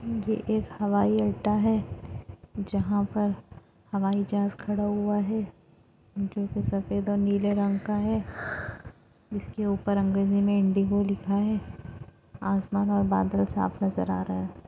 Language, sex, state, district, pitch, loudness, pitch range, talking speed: Hindi, female, Maharashtra, Dhule, 200 Hz, -27 LUFS, 195-210 Hz, 145 wpm